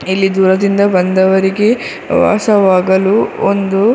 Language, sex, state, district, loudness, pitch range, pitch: Kannada, female, Karnataka, Dakshina Kannada, -12 LUFS, 190-200 Hz, 195 Hz